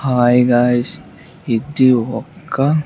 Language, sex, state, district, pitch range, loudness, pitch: Telugu, male, Andhra Pradesh, Sri Satya Sai, 120-135 Hz, -15 LUFS, 125 Hz